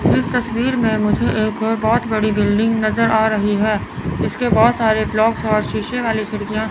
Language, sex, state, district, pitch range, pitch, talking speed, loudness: Hindi, male, Chandigarh, Chandigarh, 215-230 Hz, 220 Hz, 180 wpm, -17 LUFS